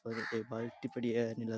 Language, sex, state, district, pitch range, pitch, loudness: Rajasthani, male, Rajasthan, Churu, 115-120 Hz, 115 Hz, -38 LUFS